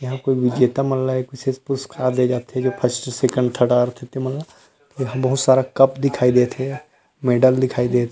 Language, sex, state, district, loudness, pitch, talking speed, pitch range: Chhattisgarhi, male, Chhattisgarh, Rajnandgaon, -19 LUFS, 130 Hz, 205 wpm, 125-135 Hz